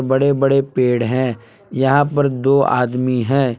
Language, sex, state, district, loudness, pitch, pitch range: Hindi, male, Jharkhand, Palamu, -16 LUFS, 130 Hz, 125-135 Hz